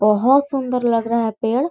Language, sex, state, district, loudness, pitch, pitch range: Hindi, female, Chhattisgarh, Korba, -18 LUFS, 240 Hz, 225-265 Hz